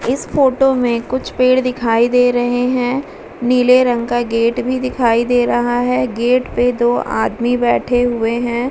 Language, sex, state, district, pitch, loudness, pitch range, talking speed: Hindi, female, Bihar, Vaishali, 245 Hz, -15 LUFS, 240-255 Hz, 170 wpm